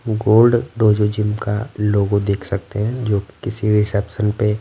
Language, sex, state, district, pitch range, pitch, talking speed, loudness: Hindi, male, Bihar, Patna, 100-110 Hz, 105 Hz, 155 wpm, -18 LUFS